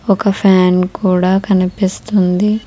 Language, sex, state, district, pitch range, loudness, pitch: Telugu, female, Telangana, Hyderabad, 185-200 Hz, -13 LUFS, 190 Hz